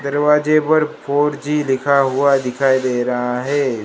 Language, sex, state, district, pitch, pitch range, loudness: Hindi, male, Gujarat, Gandhinagar, 140 Hz, 130-150 Hz, -17 LUFS